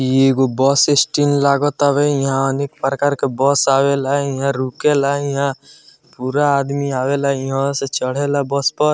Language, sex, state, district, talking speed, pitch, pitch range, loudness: Bhojpuri, male, Bihar, Muzaffarpur, 150 wpm, 140 Hz, 135-145 Hz, -17 LUFS